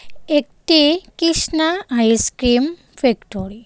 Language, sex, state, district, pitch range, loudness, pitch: Bengali, female, Tripura, West Tripura, 235-330 Hz, -17 LUFS, 295 Hz